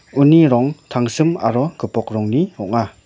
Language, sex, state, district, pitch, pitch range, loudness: Garo, male, Meghalaya, West Garo Hills, 120 Hz, 115-150 Hz, -17 LUFS